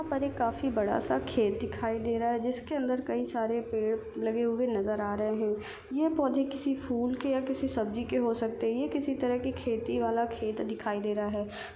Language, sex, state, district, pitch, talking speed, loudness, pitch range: Hindi, female, Maharashtra, Solapur, 235 Hz, 205 wpm, -31 LUFS, 220-265 Hz